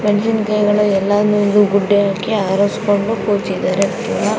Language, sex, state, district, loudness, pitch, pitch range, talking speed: Kannada, female, Karnataka, Bijapur, -15 LUFS, 205 Hz, 200-210 Hz, 110 wpm